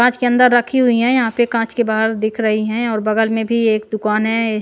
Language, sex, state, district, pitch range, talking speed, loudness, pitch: Hindi, female, Punjab, Pathankot, 220-240 Hz, 270 wpm, -16 LUFS, 225 Hz